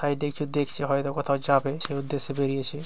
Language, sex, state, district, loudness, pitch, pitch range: Bengali, male, West Bengal, Dakshin Dinajpur, -27 LUFS, 140 Hz, 140-145 Hz